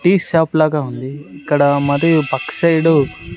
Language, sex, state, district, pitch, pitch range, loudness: Telugu, male, Andhra Pradesh, Sri Satya Sai, 150 Hz, 140-160 Hz, -15 LUFS